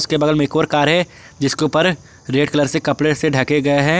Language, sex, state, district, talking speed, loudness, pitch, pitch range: Hindi, male, Jharkhand, Garhwa, 255 wpm, -17 LUFS, 150 Hz, 145-155 Hz